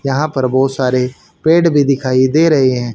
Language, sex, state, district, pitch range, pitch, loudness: Hindi, male, Haryana, Jhajjar, 130-150 Hz, 135 Hz, -13 LUFS